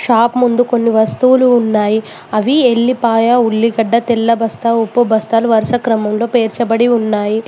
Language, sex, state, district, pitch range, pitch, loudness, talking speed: Telugu, female, Telangana, Mahabubabad, 220-240 Hz, 230 Hz, -13 LUFS, 130 wpm